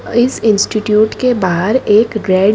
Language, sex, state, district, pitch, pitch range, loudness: Hindi, female, Delhi, New Delhi, 215 Hz, 205-235 Hz, -13 LUFS